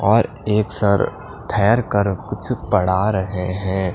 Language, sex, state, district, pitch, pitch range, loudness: Hindi, male, Punjab, Pathankot, 100 Hz, 95-110 Hz, -19 LUFS